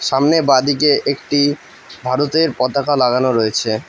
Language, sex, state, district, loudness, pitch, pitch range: Bengali, male, West Bengal, Alipurduar, -15 LUFS, 140 Hz, 125-145 Hz